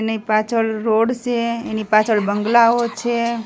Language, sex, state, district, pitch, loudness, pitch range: Gujarati, female, Gujarat, Gandhinagar, 225 Hz, -18 LUFS, 220-235 Hz